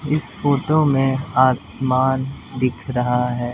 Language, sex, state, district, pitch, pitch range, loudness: Hindi, male, Delhi, New Delhi, 130 Hz, 125-140 Hz, -19 LUFS